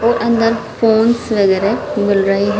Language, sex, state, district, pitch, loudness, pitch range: Hindi, male, Haryana, Charkhi Dadri, 220 Hz, -14 LUFS, 200-230 Hz